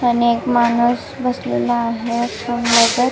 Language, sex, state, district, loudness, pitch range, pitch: Marathi, female, Maharashtra, Nagpur, -17 LUFS, 230-245 Hz, 240 Hz